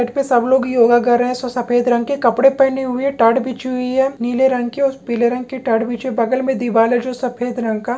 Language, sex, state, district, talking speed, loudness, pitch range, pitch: Hindi, male, Maharashtra, Pune, 295 wpm, -16 LUFS, 240-260 Hz, 250 Hz